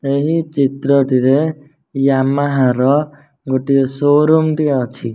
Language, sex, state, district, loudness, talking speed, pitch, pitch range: Odia, male, Odisha, Nuapada, -15 LUFS, 95 wpm, 140 Hz, 135-150 Hz